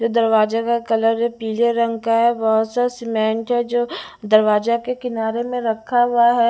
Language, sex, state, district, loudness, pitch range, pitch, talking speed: Hindi, female, Bihar, West Champaran, -19 LUFS, 225-240 Hz, 230 Hz, 195 wpm